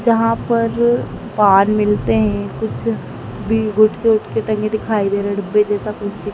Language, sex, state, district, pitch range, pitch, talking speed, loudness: Hindi, female, Madhya Pradesh, Dhar, 205-225 Hz, 215 Hz, 150 wpm, -17 LUFS